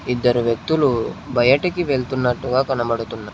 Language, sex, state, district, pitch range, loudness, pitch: Telugu, male, Telangana, Hyderabad, 120-135 Hz, -19 LUFS, 125 Hz